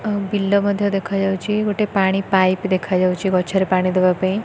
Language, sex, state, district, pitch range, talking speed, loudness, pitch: Odia, female, Odisha, Khordha, 185-200 Hz, 175 wpm, -18 LUFS, 195 Hz